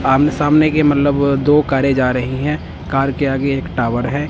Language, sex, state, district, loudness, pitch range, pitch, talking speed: Hindi, male, Punjab, Kapurthala, -16 LUFS, 135-145 Hz, 140 Hz, 210 wpm